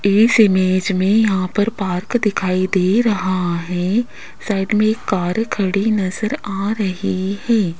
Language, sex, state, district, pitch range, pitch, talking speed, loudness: Hindi, female, Rajasthan, Jaipur, 185-215 Hz, 195 Hz, 145 wpm, -18 LUFS